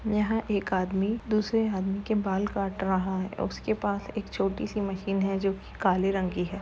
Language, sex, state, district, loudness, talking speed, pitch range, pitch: Hindi, female, Uttar Pradesh, Jalaun, -29 LUFS, 210 wpm, 190-210 Hz, 195 Hz